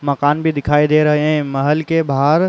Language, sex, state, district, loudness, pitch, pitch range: Hindi, male, Uttar Pradesh, Muzaffarnagar, -15 LUFS, 150 Hz, 145-155 Hz